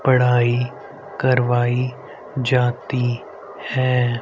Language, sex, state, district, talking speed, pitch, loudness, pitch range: Hindi, male, Haryana, Rohtak, 55 wpm, 125 Hz, -20 LUFS, 120-130 Hz